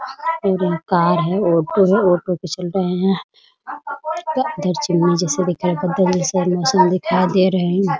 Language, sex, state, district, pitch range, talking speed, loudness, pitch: Hindi, female, Bihar, Muzaffarpur, 175-195 Hz, 140 wpm, -18 LUFS, 185 Hz